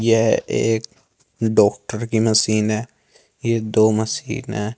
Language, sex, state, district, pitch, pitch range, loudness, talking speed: Hindi, male, Uttar Pradesh, Saharanpur, 110 Hz, 110-115 Hz, -19 LUFS, 125 wpm